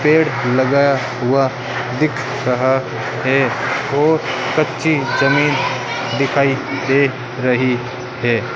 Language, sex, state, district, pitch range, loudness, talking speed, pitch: Hindi, male, Rajasthan, Bikaner, 125-140 Hz, -17 LUFS, 90 wpm, 135 Hz